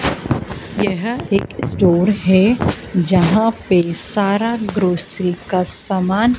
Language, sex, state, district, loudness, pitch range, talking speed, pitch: Hindi, female, Madhya Pradesh, Dhar, -16 LUFS, 180-210 Hz, 95 wpm, 195 Hz